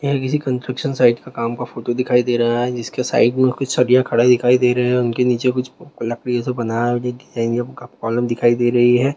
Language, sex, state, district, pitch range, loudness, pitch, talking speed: Hindi, male, West Bengal, Jhargram, 120-125 Hz, -18 LUFS, 125 Hz, 260 wpm